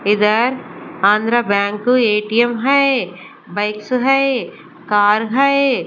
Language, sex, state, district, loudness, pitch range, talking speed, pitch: Hindi, female, Bihar, Patna, -15 LUFS, 210-260 Hz, 100 wpm, 235 Hz